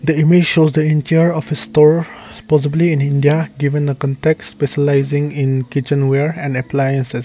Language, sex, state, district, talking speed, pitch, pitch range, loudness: English, male, Nagaland, Kohima, 155 wpm, 145 Hz, 140-155 Hz, -15 LUFS